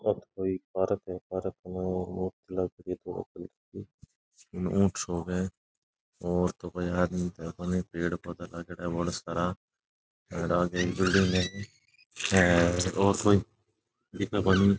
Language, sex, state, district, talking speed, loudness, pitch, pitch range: Rajasthani, male, Rajasthan, Nagaur, 105 wpm, -29 LUFS, 90 Hz, 90-95 Hz